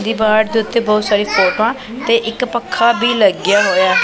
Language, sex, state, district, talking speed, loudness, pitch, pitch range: Punjabi, female, Punjab, Pathankot, 180 wpm, -14 LUFS, 225 Hz, 210-235 Hz